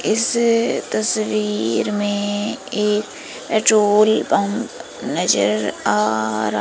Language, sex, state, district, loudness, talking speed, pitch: Hindi, female, Madhya Pradesh, Umaria, -18 LUFS, 80 wpm, 210 Hz